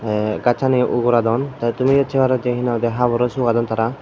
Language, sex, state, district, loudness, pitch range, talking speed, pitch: Chakma, male, Tripura, Dhalai, -18 LUFS, 115-130 Hz, 195 wpm, 120 Hz